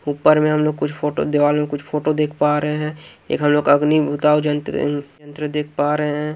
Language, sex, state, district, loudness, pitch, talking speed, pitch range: Hindi, male, Haryana, Jhajjar, -19 LUFS, 150 Hz, 225 wpm, 145-150 Hz